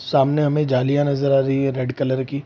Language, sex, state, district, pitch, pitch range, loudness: Hindi, male, Bihar, Saharsa, 135 Hz, 135-140 Hz, -19 LUFS